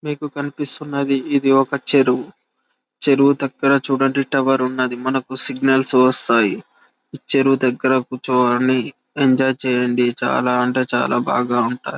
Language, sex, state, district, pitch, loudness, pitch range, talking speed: Telugu, male, Telangana, Karimnagar, 130 Hz, -18 LUFS, 125-140 Hz, 115 wpm